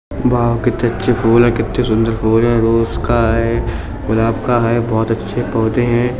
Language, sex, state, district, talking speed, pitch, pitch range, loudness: Hindi, female, Uttar Pradesh, Etah, 185 wpm, 115 Hz, 115-120 Hz, -15 LUFS